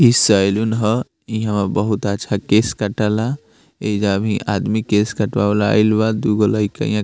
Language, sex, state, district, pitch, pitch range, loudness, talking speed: Bhojpuri, male, Bihar, Muzaffarpur, 105 Hz, 105-110 Hz, -18 LUFS, 170 wpm